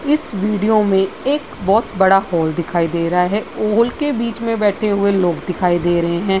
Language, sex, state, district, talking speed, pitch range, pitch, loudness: Hindi, female, Bihar, Vaishali, 205 wpm, 175-220 Hz, 195 Hz, -17 LUFS